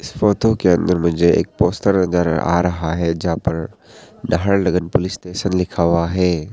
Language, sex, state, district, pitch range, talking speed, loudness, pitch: Hindi, male, Arunachal Pradesh, Papum Pare, 85-95 Hz, 185 wpm, -18 LUFS, 90 Hz